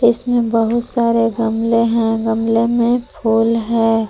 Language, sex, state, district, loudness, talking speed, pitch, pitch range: Hindi, female, Jharkhand, Palamu, -16 LUFS, 130 wpm, 230 Hz, 225-235 Hz